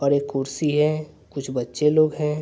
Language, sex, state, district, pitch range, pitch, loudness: Hindi, male, Bihar, Vaishali, 135-155 Hz, 150 Hz, -22 LUFS